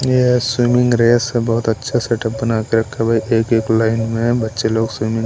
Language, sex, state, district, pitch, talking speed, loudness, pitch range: Hindi, male, Maharashtra, Washim, 115 Hz, 240 wpm, -16 LUFS, 115-120 Hz